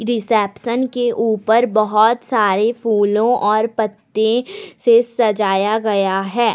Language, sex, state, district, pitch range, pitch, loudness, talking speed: Hindi, female, Jharkhand, Deoghar, 210-235 Hz, 220 Hz, -16 LUFS, 110 wpm